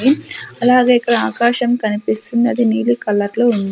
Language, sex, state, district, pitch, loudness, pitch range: Telugu, female, Andhra Pradesh, Sri Satya Sai, 235 Hz, -15 LUFS, 220-245 Hz